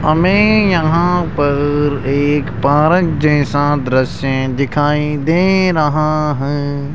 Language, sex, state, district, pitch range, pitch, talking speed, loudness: Hindi, male, Rajasthan, Jaipur, 140-160 Hz, 150 Hz, 95 wpm, -14 LUFS